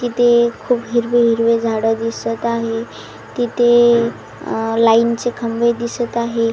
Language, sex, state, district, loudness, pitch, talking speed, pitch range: Marathi, female, Maharashtra, Washim, -16 LUFS, 235 Hz, 120 wpm, 230-240 Hz